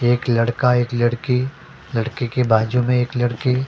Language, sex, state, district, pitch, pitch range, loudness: Hindi, male, Delhi, New Delhi, 120 Hz, 120-125 Hz, -19 LUFS